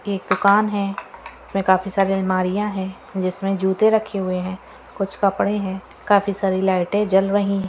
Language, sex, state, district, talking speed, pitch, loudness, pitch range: Hindi, female, Haryana, Charkhi Dadri, 170 wpm, 195 Hz, -20 LUFS, 190-200 Hz